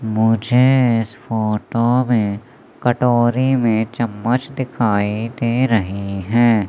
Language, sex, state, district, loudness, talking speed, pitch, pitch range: Hindi, male, Madhya Pradesh, Umaria, -18 LUFS, 100 wpm, 115 Hz, 110-125 Hz